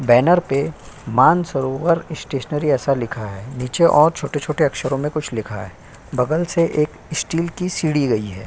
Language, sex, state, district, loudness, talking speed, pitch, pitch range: Hindi, male, Uttar Pradesh, Jyotiba Phule Nagar, -19 LUFS, 165 wpm, 145 Hz, 125-165 Hz